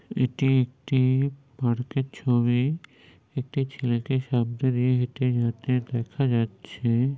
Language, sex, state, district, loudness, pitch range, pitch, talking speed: Bengali, male, West Bengal, North 24 Parganas, -26 LUFS, 120-135 Hz, 125 Hz, 100 wpm